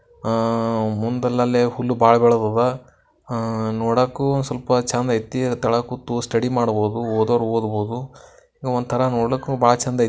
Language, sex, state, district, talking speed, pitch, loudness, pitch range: Kannada, male, Karnataka, Bijapur, 120 wpm, 120 Hz, -20 LUFS, 115-125 Hz